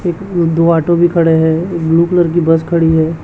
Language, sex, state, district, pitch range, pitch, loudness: Hindi, male, Chhattisgarh, Raipur, 160-175 Hz, 170 Hz, -12 LUFS